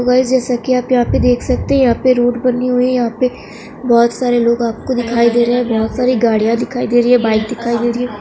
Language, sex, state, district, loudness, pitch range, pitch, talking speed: Hindi, female, Bihar, Darbhanga, -14 LUFS, 235-250 Hz, 245 Hz, 265 wpm